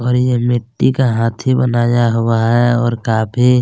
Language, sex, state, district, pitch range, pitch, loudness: Hindi, male, Chhattisgarh, Kabirdham, 115-125 Hz, 120 Hz, -14 LUFS